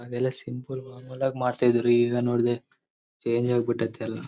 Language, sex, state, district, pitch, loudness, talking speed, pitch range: Kannada, male, Karnataka, Bellary, 120 Hz, -26 LUFS, 140 wpm, 120-130 Hz